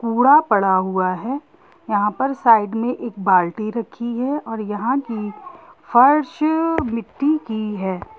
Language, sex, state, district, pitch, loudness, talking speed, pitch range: Hindi, female, Bihar, Gopalganj, 230 Hz, -19 LUFS, 140 wpm, 210-275 Hz